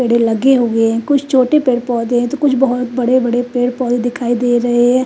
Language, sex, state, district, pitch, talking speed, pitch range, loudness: Hindi, female, Chandigarh, Chandigarh, 245 Hz, 215 wpm, 240-255 Hz, -14 LUFS